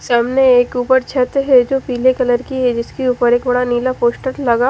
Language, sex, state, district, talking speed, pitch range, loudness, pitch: Hindi, female, Haryana, Charkhi Dadri, 215 wpm, 245-260 Hz, -15 LUFS, 250 Hz